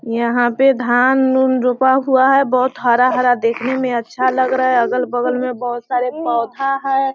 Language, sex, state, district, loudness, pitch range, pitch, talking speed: Hindi, female, Bihar, Sitamarhi, -16 LUFS, 245-260 Hz, 255 Hz, 175 wpm